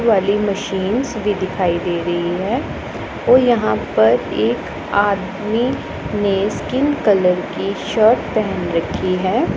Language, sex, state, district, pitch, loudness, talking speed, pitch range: Hindi, female, Punjab, Pathankot, 200 Hz, -18 LUFS, 125 wpm, 185-225 Hz